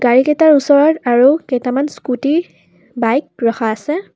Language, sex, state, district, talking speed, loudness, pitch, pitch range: Assamese, female, Assam, Kamrup Metropolitan, 130 wpm, -14 LUFS, 270 Hz, 240-295 Hz